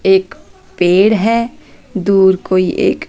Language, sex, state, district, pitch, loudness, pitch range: Hindi, female, Chandigarh, Chandigarh, 195 Hz, -13 LUFS, 185-230 Hz